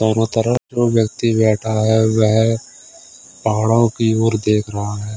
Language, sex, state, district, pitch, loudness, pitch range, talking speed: Hindi, male, Odisha, Khordha, 110 Hz, -17 LUFS, 110-115 Hz, 150 wpm